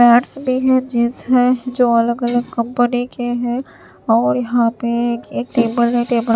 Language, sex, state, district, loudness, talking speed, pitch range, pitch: Hindi, female, Himachal Pradesh, Shimla, -17 LUFS, 170 wpm, 235-250 Hz, 240 Hz